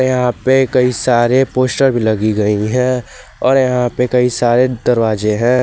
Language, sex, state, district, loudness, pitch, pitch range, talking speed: Hindi, male, Jharkhand, Garhwa, -14 LUFS, 125 Hz, 115-130 Hz, 160 wpm